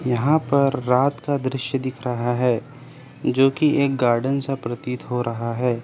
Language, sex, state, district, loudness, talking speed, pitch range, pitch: Hindi, male, Jharkhand, Jamtara, -22 LUFS, 165 wpm, 125-140 Hz, 130 Hz